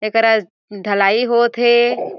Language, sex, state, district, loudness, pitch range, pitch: Chhattisgarhi, female, Chhattisgarh, Jashpur, -15 LUFS, 205-240 Hz, 225 Hz